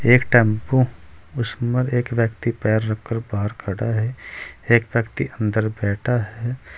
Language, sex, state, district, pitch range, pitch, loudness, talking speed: Hindi, male, Uttar Pradesh, Saharanpur, 110-120 Hz, 115 Hz, -21 LUFS, 130 wpm